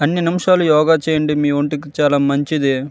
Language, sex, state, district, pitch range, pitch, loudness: Telugu, male, Andhra Pradesh, Srikakulam, 145-160 Hz, 150 Hz, -16 LUFS